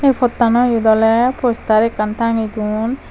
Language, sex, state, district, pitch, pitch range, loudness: Chakma, female, Tripura, Dhalai, 230 Hz, 220-245 Hz, -15 LUFS